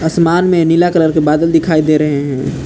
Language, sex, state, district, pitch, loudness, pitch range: Hindi, male, Jharkhand, Palamu, 160 Hz, -12 LUFS, 155-165 Hz